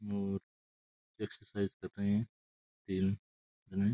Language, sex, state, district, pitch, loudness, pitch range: Rajasthani, male, Rajasthan, Churu, 95 Hz, -38 LUFS, 65-100 Hz